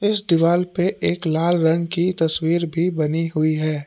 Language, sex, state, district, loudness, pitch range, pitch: Hindi, male, Jharkhand, Palamu, -19 LUFS, 160-175 Hz, 170 Hz